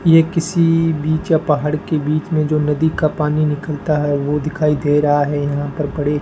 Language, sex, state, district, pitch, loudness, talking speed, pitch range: Hindi, male, Rajasthan, Bikaner, 150 Hz, -17 LUFS, 220 wpm, 145-155 Hz